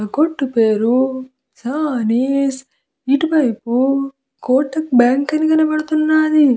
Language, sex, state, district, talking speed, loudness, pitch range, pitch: Telugu, female, Andhra Pradesh, Visakhapatnam, 90 wpm, -16 LUFS, 250-305 Hz, 270 Hz